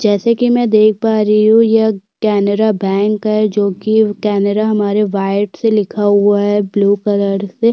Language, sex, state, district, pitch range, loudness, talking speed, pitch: Hindi, female, Uttarakhand, Tehri Garhwal, 200-220 Hz, -13 LUFS, 185 wpm, 210 Hz